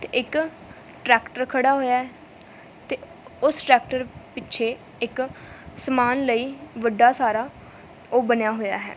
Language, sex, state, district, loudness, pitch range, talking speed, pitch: Punjabi, female, Punjab, Fazilka, -23 LUFS, 240-265 Hz, 125 wpm, 250 Hz